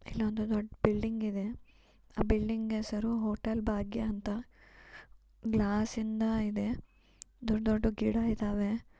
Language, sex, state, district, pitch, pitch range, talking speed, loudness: Kannada, female, Karnataka, Raichur, 220 Hz, 215-225 Hz, 105 wpm, -33 LUFS